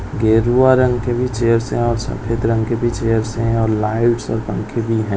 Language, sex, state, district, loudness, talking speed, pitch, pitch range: Hindi, male, Bihar, Lakhisarai, -17 LUFS, 220 wpm, 115 Hz, 110-120 Hz